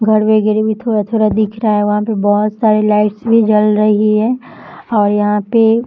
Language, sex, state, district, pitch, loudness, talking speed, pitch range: Hindi, female, Bihar, Jahanabad, 215 Hz, -13 LUFS, 205 wpm, 210-220 Hz